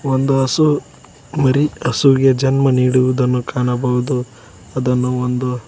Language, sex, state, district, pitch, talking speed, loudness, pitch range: Kannada, male, Karnataka, Koppal, 130 Hz, 95 wpm, -16 LUFS, 125-135 Hz